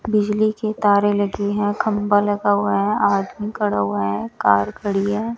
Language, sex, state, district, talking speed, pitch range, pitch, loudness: Hindi, female, Chandigarh, Chandigarh, 180 wpm, 200-210 Hz, 205 Hz, -19 LUFS